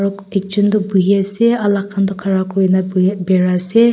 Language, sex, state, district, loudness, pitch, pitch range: Nagamese, female, Nagaland, Kohima, -15 LUFS, 195 Hz, 190-200 Hz